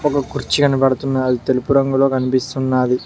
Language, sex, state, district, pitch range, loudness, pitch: Telugu, male, Telangana, Mahabubabad, 130-135 Hz, -17 LUFS, 130 Hz